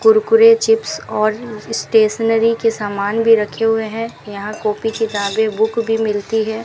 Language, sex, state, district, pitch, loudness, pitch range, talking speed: Hindi, female, Rajasthan, Bikaner, 225 Hz, -16 LUFS, 215-230 Hz, 155 wpm